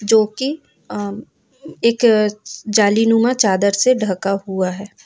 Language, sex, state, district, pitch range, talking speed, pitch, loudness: Hindi, female, Jharkhand, Ranchi, 200-230 Hz, 105 wpm, 210 Hz, -17 LUFS